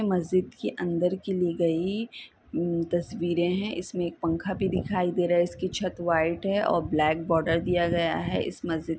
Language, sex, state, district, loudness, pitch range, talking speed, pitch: Hindi, female, Bihar, Saran, -27 LUFS, 165-185 Hz, 195 wpm, 175 Hz